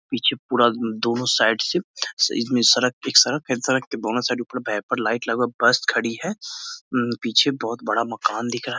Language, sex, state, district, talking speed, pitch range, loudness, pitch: Hindi, male, Bihar, Muzaffarpur, 190 wpm, 115-125 Hz, -21 LUFS, 120 Hz